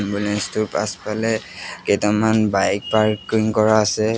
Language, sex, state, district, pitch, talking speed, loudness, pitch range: Assamese, male, Assam, Sonitpur, 110 Hz, 115 wpm, -19 LUFS, 105-110 Hz